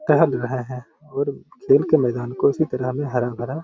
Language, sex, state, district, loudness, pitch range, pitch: Hindi, male, Bihar, Gaya, -21 LUFS, 125-150 Hz, 130 Hz